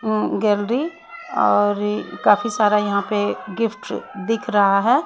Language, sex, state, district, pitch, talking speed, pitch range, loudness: Hindi, female, Haryana, Rohtak, 210 Hz, 130 wpm, 205-230 Hz, -20 LUFS